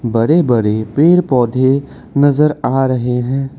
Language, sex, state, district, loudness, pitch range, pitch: Hindi, male, Assam, Kamrup Metropolitan, -14 LUFS, 125-145 Hz, 130 Hz